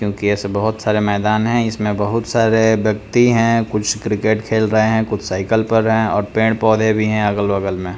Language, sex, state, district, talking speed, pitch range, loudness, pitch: Hindi, male, Bihar, Patna, 195 wpm, 105-110 Hz, -16 LUFS, 110 Hz